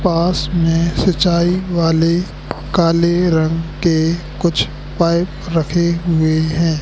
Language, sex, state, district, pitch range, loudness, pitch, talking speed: Hindi, male, Madhya Pradesh, Katni, 160-170 Hz, -16 LUFS, 170 Hz, 105 wpm